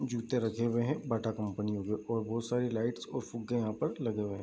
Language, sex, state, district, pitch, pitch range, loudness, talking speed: Hindi, male, Bihar, Bhagalpur, 115 Hz, 110-120 Hz, -34 LUFS, 255 wpm